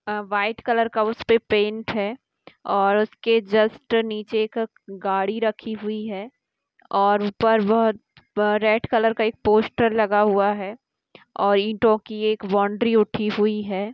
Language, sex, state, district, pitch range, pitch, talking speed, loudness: Hindi, female, Bihar, Jamui, 205-225 Hz, 215 Hz, 150 wpm, -22 LUFS